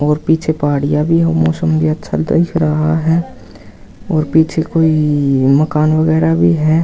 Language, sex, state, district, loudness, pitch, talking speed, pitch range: Hindi, male, Haryana, Jhajjar, -14 LUFS, 155 Hz, 160 wpm, 145-160 Hz